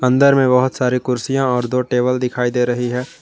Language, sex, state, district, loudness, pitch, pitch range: Hindi, male, Jharkhand, Garhwa, -17 LUFS, 125 Hz, 125-130 Hz